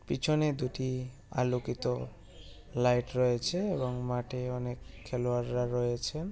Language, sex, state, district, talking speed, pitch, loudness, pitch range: Bengali, female, West Bengal, Malda, 95 wpm, 125 Hz, -32 LUFS, 120-130 Hz